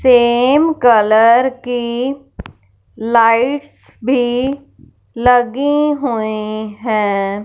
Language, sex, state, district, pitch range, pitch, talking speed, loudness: Hindi, female, Punjab, Fazilka, 215-260 Hz, 240 Hz, 65 wpm, -14 LUFS